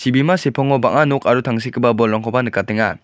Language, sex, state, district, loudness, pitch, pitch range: Garo, male, Meghalaya, West Garo Hills, -16 LUFS, 125 Hz, 115-135 Hz